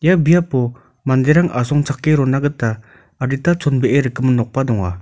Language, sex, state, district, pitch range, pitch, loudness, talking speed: Garo, male, Meghalaya, North Garo Hills, 125-150 Hz, 135 Hz, -16 LUFS, 130 wpm